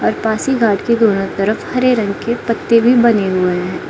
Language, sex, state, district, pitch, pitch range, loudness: Hindi, female, Arunachal Pradesh, Lower Dibang Valley, 220 Hz, 195-235 Hz, -15 LUFS